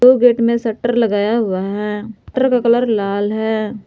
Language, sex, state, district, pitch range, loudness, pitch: Hindi, female, Jharkhand, Palamu, 210-235 Hz, -16 LUFS, 220 Hz